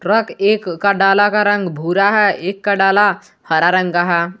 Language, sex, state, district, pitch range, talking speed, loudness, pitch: Hindi, male, Jharkhand, Garhwa, 175-205 Hz, 190 wpm, -15 LUFS, 195 Hz